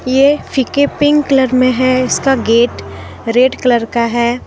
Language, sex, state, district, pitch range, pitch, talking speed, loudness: Hindi, female, Jharkhand, Deoghar, 240-270 Hz, 255 Hz, 175 wpm, -12 LUFS